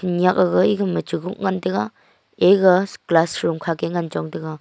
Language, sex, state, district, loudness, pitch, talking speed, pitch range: Wancho, female, Arunachal Pradesh, Longding, -19 LUFS, 180 Hz, 195 wpm, 165-190 Hz